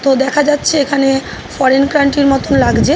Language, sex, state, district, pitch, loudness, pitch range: Bengali, female, West Bengal, North 24 Parganas, 275 Hz, -12 LUFS, 270-285 Hz